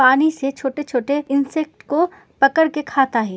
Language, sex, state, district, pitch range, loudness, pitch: Hindi, female, Uttar Pradesh, Muzaffarnagar, 270-315 Hz, -19 LUFS, 280 Hz